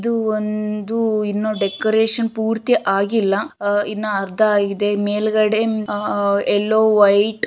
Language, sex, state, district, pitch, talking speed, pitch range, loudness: Kannada, female, Karnataka, Shimoga, 215 Hz, 120 wpm, 205-220 Hz, -18 LUFS